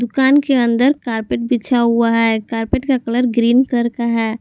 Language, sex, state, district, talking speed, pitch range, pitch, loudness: Hindi, female, Jharkhand, Garhwa, 190 wpm, 230-255 Hz, 235 Hz, -16 LUFS